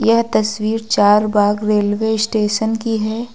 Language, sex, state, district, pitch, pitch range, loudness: Hindi, female, Uttar Pradesh, Lucknow, 215 Hz, 210-225 Hz, -16 LUFS